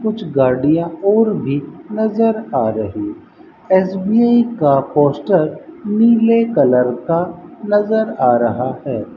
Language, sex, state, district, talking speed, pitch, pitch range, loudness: Hindi, male, Rajasthan, Bikaner, 110 wpm, 185 Hz, 135-220 Hz, -16 LUFS